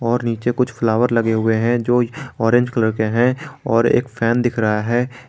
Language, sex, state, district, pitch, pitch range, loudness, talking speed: Hindi, male, Jharkhand, Garhwa, 120 Hz, 115-125 Hz, -18 LUFS, 205 wpm